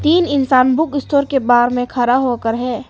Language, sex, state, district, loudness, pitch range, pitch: Hindi, female, Arunachal Pradesh, Papum Pare, -15 LUFS, 245-285 Hz, 255 Hz